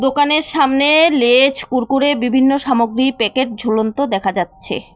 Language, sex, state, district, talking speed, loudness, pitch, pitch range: Bengali, female, West Bengal, Cooch Behar, 120 wpm, -15 LUFS, 265 Hz, 235-280 Hz